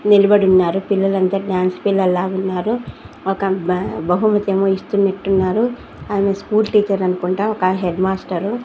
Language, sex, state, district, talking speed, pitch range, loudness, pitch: Telugu, female, Andhra Pradesh, Sri Satya Sai, 110 wpm, 185-205 Hz, -17 LUFS, 195 Hz